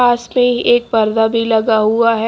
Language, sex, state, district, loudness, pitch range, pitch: Hindi, female, Haryana, Jhajjar, -14 LUFS, 225-240 Hz, 230 Hz